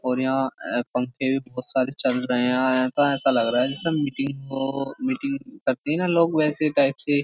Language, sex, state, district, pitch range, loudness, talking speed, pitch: Hindi, male, Uttar Pradesh, Jyotiba Phule Nagar, 130-150 Hz, -23 LUFS, 215 wpm, 135 Hz